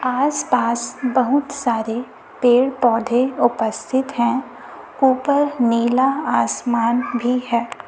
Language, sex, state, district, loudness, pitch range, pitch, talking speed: Hindi, female, Chhattisgarh, Raipur, -19 LUFS, 235-265 Hz, 250 Hz, 100 wpm